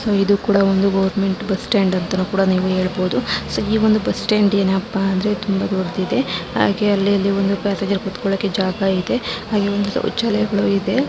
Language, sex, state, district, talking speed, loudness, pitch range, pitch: Kannada, female, Karnataka, Shimoga, 135 wpm, -18 LUFS, 190-205 Hz, 195 Hz